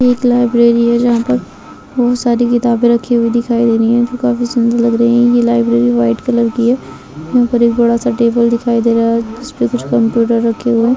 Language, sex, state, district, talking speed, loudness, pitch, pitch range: Hindi, female, Bihar, Kishanganj, 235 wpm, -12 LUFS, 235 Hz, 230-240 Hz